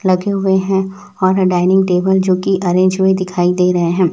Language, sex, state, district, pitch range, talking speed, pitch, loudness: Hindi, male, Chhattisgarh, Raipur, 180-190 Hz, 190 wpm, 185 Hz, -14 LUFS